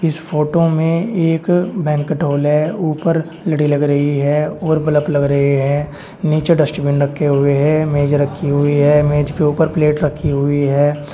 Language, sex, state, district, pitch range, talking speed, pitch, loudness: Hindi, male, Uttar Pradesh, Shamli, 145-160 Hz, 180 wpm, 150 Hz, -15 LUFS